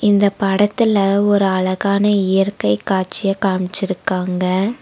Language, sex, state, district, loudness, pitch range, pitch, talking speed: Tamil, female, Tamil Nadu, Nilgiris, -16 LUFS, 185-205 Hz, 195 Hz, 85 wpm